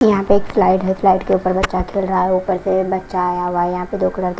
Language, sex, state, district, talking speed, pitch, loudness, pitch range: Hindi, female, Punjab, Kapurthala, 300 wpm, 185 Hz, -17 LUFS, 185-190 Hz